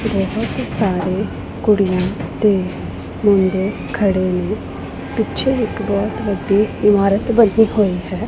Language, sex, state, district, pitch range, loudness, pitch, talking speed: Punjabi, female, Punjab, Pathankot, 190-215 Hz, -17 LUFS, 200 Hz, 110 wpm